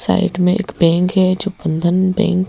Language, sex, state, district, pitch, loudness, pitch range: Hindi, female, Madhya Pradesh, Bhopal, 185 Hz, -16 LUFS, 180-195 Hz